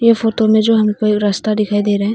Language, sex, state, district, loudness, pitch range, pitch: Hindi, female, Arunachal Pradesh, Longding, -14 LUFS, 205-225 Hz, 215 Hz